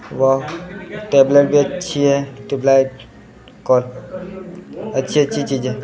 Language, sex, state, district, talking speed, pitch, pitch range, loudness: Hindi, male, Maharashtra, Gondia, 125 wpm, 140 Hz, 130-170 Hz, -16 LUFS